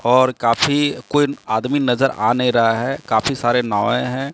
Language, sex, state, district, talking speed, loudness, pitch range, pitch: Hindi, male, Bihar, Katihar, 180 wpm, -18 LUFS, 115-135 Hz, 125 Hz